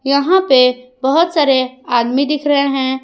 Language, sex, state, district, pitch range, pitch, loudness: Hindi, female, Jharkhand, Ranchi, 255-290 Hz, 270 Hz, -14 LUFS